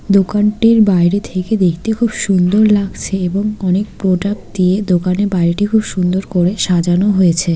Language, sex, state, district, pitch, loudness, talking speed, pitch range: Bengali, female, West Bengal, Malda, 190 Hz, -14 LUFS, 145 wpm, 180-205 Hz